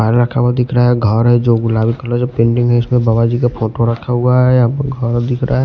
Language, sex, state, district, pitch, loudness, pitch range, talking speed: Hindi, male, Punjab, Pathankot, 120 Hz, -14 LUFS, 115-125 Hz, 285 wpm